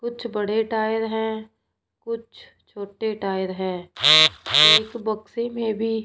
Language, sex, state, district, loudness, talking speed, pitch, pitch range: Hindi, female, Punjab, Fazilka, -20 LUFS, 120 wpm, 220 Hz, 195-225 Hz